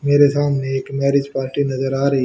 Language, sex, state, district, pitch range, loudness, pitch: Hindi, male, Haryana, Rohtak, 135-140 Hz, -18 LUFS, 140 Hz